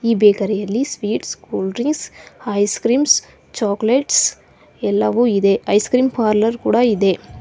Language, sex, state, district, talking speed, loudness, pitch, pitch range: Kannada, female, Karnataka, Bangalore, 130 wpm, -17 LUFS, 215 Hz, 205-240 Hz